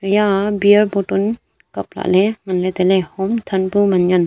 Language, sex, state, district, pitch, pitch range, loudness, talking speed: Wancho, female, Arunachal Pradesh, Longding, 195 Hz, 185-205 Hz, -16 LUFS, 210 wpm